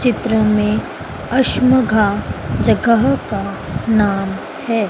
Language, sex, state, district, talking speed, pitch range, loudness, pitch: Hindi, female, Madhya Pradesh, Dhar, 85 wpm, 210-250 Hz, -16 LUFS, 220 Hz